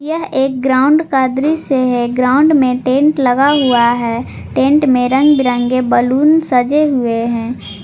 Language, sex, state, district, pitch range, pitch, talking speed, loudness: Hindi, female, Jharkhand, Garhwa, 245-290 Hz, 260 Hz, 155 wpm, -13 LUFS